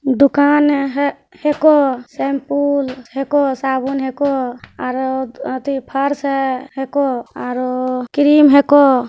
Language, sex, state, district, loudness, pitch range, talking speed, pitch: Hindi, female, Bihar, Begusarai, -16 LUFS, 260-285 Hz, 125 wpm, 275 Hz